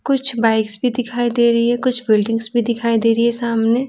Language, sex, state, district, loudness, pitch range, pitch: Hindi, female, Bihar, Patna, -17 LUFS, 225-245 Hz, 235 Hz